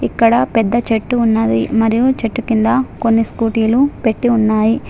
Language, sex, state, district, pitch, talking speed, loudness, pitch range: Telugu, female, Telangana, Adilabad, 230 Hz, 135 wpm, -14 LUFS, 225-240 Hz